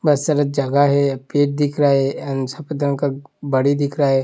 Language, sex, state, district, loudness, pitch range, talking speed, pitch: Hindi, male, Uttar Pradesh, Hamirpur, -19 LUFS, 135-145 Hz, 225 wpm, 140 Hz